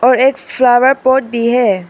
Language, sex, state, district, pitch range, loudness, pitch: Hindi, female, Arunachal Pradesh, Papum Pare, 240-265 Hz, -12 LUFS, 250 Hz